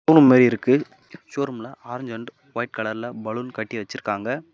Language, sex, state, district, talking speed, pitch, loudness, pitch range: Tamil, male, Tamil Nadu, Namakkal, 130 wpm, 125 Hz, -22 LUFS, 115-135 Hz